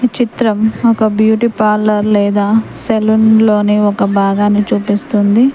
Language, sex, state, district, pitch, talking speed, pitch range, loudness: Telugu, female, Telangana, Mahabubabad, 215 Hz, 120 wpm, 205-220 Hz, -12 LUFS